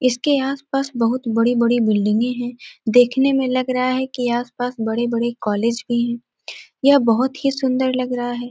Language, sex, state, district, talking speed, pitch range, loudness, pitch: Hindi, female, Bihar, Gopalganj, 175 wpm, 235-260 Hz, -19 LUFS, 245 Hz